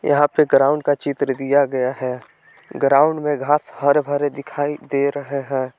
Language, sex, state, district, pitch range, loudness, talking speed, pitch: Hindi, male, Jharkhand, Palamu, 135-145 Hz, -19 LUFS, 175 wpm, 140 Hz